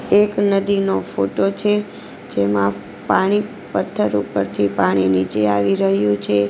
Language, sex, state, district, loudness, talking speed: Gujarati, female, Gujarat, Valsad, -18 LUFS, 120 wpm